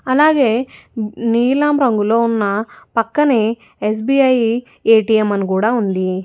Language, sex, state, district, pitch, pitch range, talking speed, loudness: Telugu, female, Telangana, Hyderabad, 230 Hz, 215-255 Hz, 95 wpm, -16 LUFS